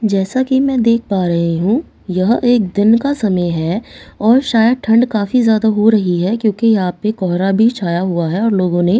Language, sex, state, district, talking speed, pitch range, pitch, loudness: Hindi, female, Bihar, Katihar, 215 wpm, 185-230 Hz, 215 Hz, -14 LUFS